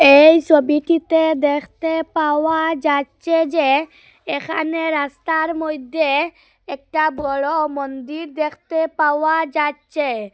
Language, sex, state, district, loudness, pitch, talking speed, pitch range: Bengali, female, Assam, Hailakandi, -18 LUFS, 310 Hz, 85 wpm, 290-320 Hz